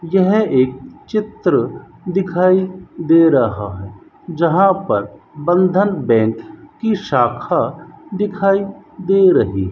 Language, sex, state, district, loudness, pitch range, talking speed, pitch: Hindi, female, Rajasthan, Bikaner, -16 LUFS, 130-195 Hz, 105 wpm, 185 Hz